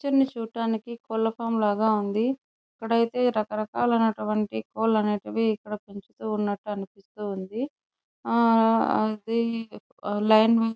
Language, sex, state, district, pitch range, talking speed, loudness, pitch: Telugu, female, Andhra Pradesh, Chittoor, 210-230 Hz, 105 wpm, -26 LUFS, 225 Hz